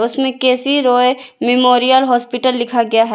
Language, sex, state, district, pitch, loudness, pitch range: Hindi, female, Jharkhand, Ranchi, 250 Hz, -14 LUFS, 245-260 Hz